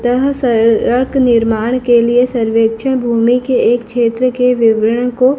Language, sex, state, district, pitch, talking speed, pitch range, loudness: Hindi, female, Madhya Pradesh, Dhar, 245 Hz, 145 wpm, 230-250 Hz, -12 LUFS